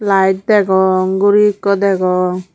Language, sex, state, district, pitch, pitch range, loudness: Chakma, female, Tripura, Unakoti, 190 Hz, 185-200 Hz, -13 LUFS